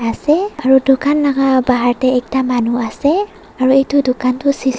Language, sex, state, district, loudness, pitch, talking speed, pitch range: Nagamese, female, Nagaland, Dimapur, -14 LUFS, 265 Hz, 175 wpm, 255-280 Hz